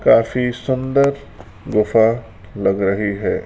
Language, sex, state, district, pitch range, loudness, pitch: Hindi, male, Rajasthan, Jaipur, 100-125 Hz, -18 LUFS, 110 Hz